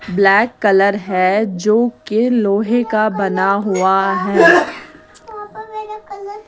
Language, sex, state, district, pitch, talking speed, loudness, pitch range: Hindi, female, Bihar, West Champaran, 210 Hz, 95 wpm, -14 LUFS, 195-245 Hz